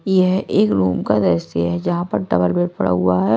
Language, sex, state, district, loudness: Hindi, female, Punjab, Kapurthala, -18 LUFS